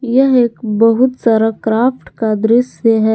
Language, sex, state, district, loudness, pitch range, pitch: Hindi, female, Jharkhand, Garhwa, -13 LUFS, 220-250 Hz, 230 Hz